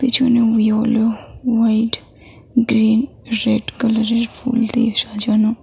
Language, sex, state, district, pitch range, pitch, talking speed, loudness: Bengali, female, West Bengal, Cooch Behar, 225-235 Hz, 230 Hz, 95 wpm, -17 LUFS